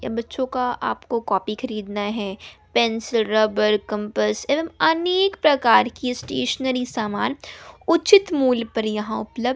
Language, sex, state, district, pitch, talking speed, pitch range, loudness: Hindi, female, Bihar, West Champaran, 235 Hz, 130 wpm, 210-260 Hz, -21 LUFS